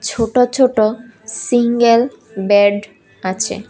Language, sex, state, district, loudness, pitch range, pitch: Bengali, female, Tripura, West Tripura, -15 LUFS, 205-240 Hz, 225 Hz